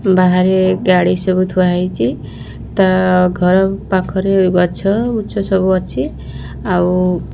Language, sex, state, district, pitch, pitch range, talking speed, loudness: Odia, female, Odisha, Khordha, 185 Hz, 180-190 Hz, 105 wpm, -14 LUFS